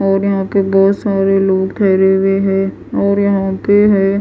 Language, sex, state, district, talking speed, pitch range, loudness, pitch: Hindi, female, Bihar, West Champaran, 185 wpm, 195-200 Hz, -13 LUFS, 195 Hz